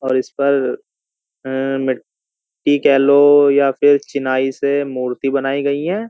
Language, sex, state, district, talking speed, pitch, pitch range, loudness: Hindi, male, Uttar Pradesh, Jyotiba Phule Nagar, 130 wpm, 140 Hz, 135-140 Hz, -16 LUFS